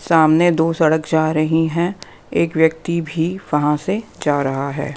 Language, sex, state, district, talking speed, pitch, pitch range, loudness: Hindi, female, Bihar, West Champaran, 170 wpm, 160 Hz, 150-170 Hz, -18 LUFS